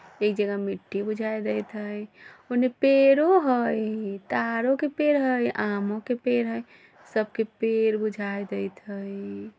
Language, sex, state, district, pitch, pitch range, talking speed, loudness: Bajjika, female, Bihar, Vaishali, 220 Hz, 200-245 Hz, 145 wpm, -25 LUFS